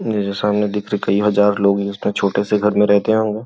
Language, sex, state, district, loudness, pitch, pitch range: Hindi, male, Uttar Pradesh, Gorakhpur, -17 LUFS, 105 Hz, 100-105 Hz